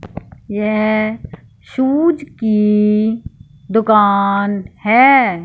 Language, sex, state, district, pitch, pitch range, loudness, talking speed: Hindi, female, Punjab, Fazilka, 215 Hz, 205-230 Hz, -14 LUFS, 55 wpm